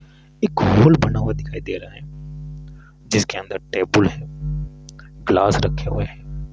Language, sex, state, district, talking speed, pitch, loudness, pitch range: Hindi, male, Rajasthan, Jaipur, 145 wpm, 150 Hz, -20 LUFS, 145-150 Hz